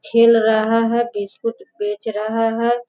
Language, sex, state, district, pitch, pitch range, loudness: Hindi, female, Bihar, Sitamarhi, 225 Hz, 215-230 Hz, -18 LUFS